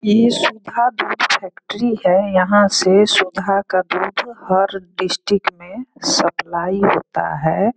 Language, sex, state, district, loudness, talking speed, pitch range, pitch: Hindi, female, Bihar, Sitamarhi, -17 LUFS, 125 wpm, 185-235 Hz, 200 Hz